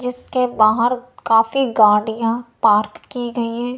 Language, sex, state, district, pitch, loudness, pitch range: Hindi, female, Punjab, Kapurthala, 235 Hz, -17 LUFS, 220-250 Hz